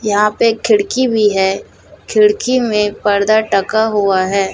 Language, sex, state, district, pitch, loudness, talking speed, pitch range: Hindi, female, Chhattisgarh, Raipur, 210 Hz, -14 LUFS, 160 wpm, 200-220 Hz